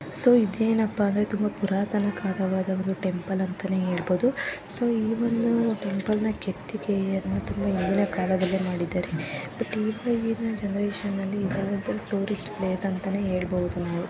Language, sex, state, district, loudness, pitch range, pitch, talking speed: Kannada, female, Karnataka, Chamarajanagar, -27 LUFS, 190-215 Hz, 200 Hz, 125 wpm